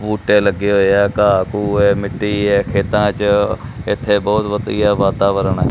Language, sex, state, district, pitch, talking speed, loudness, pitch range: Punjabi, male, Punjab, Kapurthala, 100 Hz, 170 wpm, -15 LUFS, 100-105 Hz